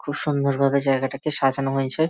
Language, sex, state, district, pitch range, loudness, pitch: Bengali, male, West Bengal, Malda, 135-145 Hz, -22 LUFS, 140 Hz